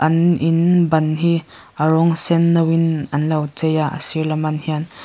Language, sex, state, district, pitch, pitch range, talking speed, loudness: Mizo, female, Mizoram, Aizawl, 160 Hz, 155-165 Hz, 215 wpm, -16 LUFS